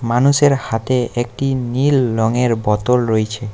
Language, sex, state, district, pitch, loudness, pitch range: Bengali, male, West Bengal, Alipurduar, 120 Hz, -16 LUFS, 115-130 Hz